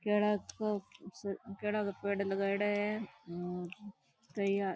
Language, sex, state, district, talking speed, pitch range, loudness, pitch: Rajasthani, female, Rajasthan, Churu, 150 wpm, 195-210 Hz, -36 LUFS, 200 Hz